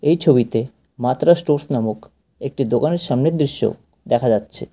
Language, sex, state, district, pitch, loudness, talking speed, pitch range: Bengali, male, West Bengal, Cooch Behar, 140 Hz, -19 LUFS, 150 wpm, 120-155 Hz